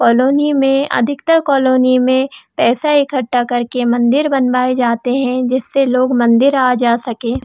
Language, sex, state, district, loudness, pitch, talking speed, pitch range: Hindi, female, Jharkhand, Jamtara, -14 LUFS, 255 Hz, 155 wpm, 245-275 Hz